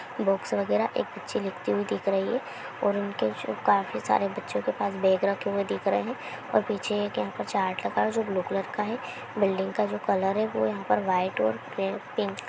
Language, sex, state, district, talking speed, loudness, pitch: Maithili, female, Bihar, Samastipur, 230 wpm, -28 LUFS, 190 Hz